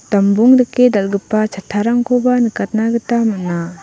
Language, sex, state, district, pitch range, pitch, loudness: Garo, female, Meghalaya, West Garo Hills, 200-240 Hz, 220 Hz, -15 LUFS